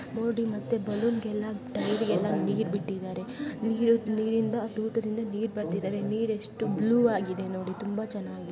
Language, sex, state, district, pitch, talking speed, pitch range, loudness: Kannada, female, Karnataka, Belgaum, 215 Hz, 140 wpm, 205-225 Hz, -29 LUFS